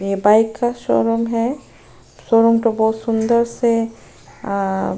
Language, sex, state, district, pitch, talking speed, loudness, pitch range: Hindi, female, Uttar Pradesh, Jyotiba Phule Nagar, 230 Hz, 145 wpm, -17 LUFS, 210-230 Hz